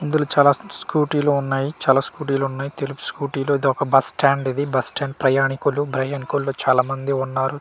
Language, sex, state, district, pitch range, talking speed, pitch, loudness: Telugu, male, Andhra Pradesh, Manyam, 135-145 Hz, 175 wpm, 140 Hz, -20 LUFS